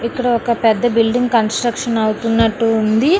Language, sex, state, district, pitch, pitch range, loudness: Telugu, female, Andhra Pradesh, Srikakulam, 230 Hz, 225-240 Hz, -16 LUFS